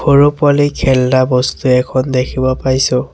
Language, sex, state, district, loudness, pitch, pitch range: Assamese, male, Assam, Sonitpur, -13 LUFS, 130 Hz, 125-140 Hz